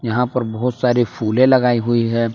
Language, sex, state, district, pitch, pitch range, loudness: Hindi, male, Jharkhand, Palamu, 120 Hz, 115-125 Hz, -17 LUFS